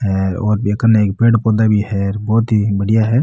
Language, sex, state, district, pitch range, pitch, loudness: Marwari, male, Rajasthan, Nagaur, 100-110 Hz, 105 Hz, -15 LUFS